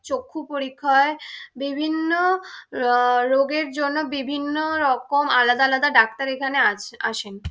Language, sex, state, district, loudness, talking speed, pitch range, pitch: Bengali, female, West Bengal, Dakshin Dinajpur, -21 LUFS, 130 wpm, 260-310 Hz, 280 Hz